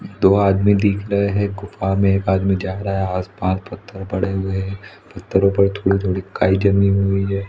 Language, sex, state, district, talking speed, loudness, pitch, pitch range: Hindi, male, Chhattisgarh, Raigarh, 210 wpm, -18 LUFS, 95 Hz, 95-100 Hz